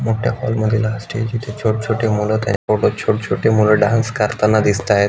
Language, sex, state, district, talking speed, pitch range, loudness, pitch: Marathi, male, Maharashtra, Aurangabad, 200 wpm, 105-115 Hz, -17 LUFS, 110 Hz